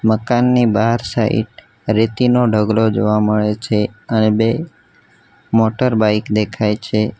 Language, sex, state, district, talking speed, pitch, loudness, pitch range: Gujarati, male, Gujarat, Valsad, 125 wpm, 110 Hz, -16 LUFS, 105-115 Hz